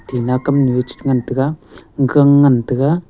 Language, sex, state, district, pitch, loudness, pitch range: Wancho, male, Arunachal Pradesh, Longding, 135 Hz, -15 LUFS, 125-140 Hz